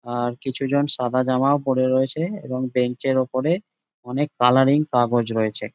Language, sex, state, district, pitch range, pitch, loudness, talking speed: Bengali, male, West Bengal, Jalpaiguri, 125-140 Hz, 130 Hz, -21 LUFS, 135 wpm